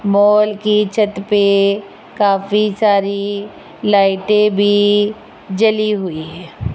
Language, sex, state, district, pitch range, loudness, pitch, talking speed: Hindi, female, Rajasthan, Jaipur, 200-210 Hz, -15 LUFS, 205 Hz, 100 wpm